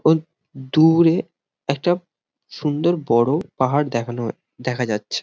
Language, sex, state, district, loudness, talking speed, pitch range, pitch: Bengali, male, West Bengal, Jhargram, -20 LUFS, 105 wpm, 125-170 Hz, 150 Hz